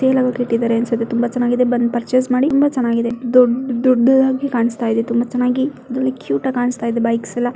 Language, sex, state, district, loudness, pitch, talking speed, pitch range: Kannada, female, Karnataka, Mysore, -17 LUFS, 245 Hz, 205 wpm, 235-255 Hz